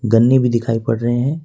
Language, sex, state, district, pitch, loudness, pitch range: Hindi, male, Jharkhand, Ranchi, 120 Hz, -16 LUFS, 115-130 Hz